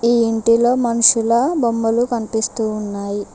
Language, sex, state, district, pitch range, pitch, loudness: Telugu, female, Telangana, Mahabubabad, 220-235 Hz, 230 Hz, -16 LUFS